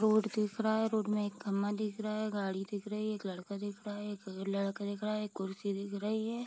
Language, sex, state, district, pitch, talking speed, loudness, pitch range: Hindi, female, Bihar, Vaishali, 205 Hz, 280 wpm, -36 LUFS, 200-215 Hz